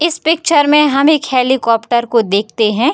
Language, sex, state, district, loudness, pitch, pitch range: Hindi, female, Bihar, Darbhanga, -12 LUFS, 265 Hz, 230-300 Hz